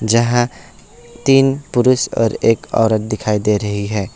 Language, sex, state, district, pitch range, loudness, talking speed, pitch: Hindi, male, West Bengal, Alipurduar, 105-120 Hz, -16 LUFS, 145 wpm, 115 Hz